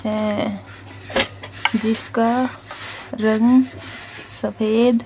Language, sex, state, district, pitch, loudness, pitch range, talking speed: Hindi, female, Haryana, Jhajjar, 225 Hz, -20 LUFS, 220-245 Hz, 60 wpm